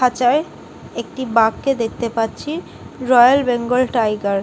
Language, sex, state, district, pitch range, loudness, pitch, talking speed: Bengali, female, West Bengal, Kolkata, 225-260 Hz, -17 LUFS, 245 Hz, 120 wpm